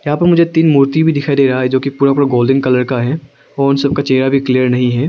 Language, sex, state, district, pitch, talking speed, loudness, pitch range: Hindi, male, Arunachal Pradesh, Longding, 140 Hz, 305 wpm, -13 LUFS, 130-145 Hz